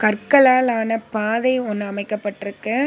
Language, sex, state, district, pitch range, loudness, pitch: Tamil, female, Tamil Nadu, Nilgiris, 210-250 Hz, -19 LUFS, 220 Hz